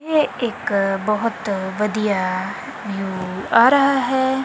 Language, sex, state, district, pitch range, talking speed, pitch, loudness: Punjabi, female, Punjab, Kapurthala, 195-260 Hz, 110 wpm, 210 Hz, -20 LUFS